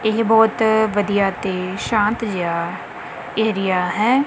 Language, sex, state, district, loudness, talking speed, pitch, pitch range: Punjabi, female, Punjab, Kapurthala, -19 LUFS, 110 wpm, 210 Hz, 185-220 Hz